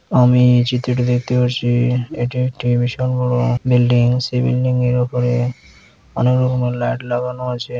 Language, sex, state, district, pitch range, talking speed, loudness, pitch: Bengali, male, West Bengal, Malda, 120-125 Hz, 140 wpm, -17 LUFS, 125 Hz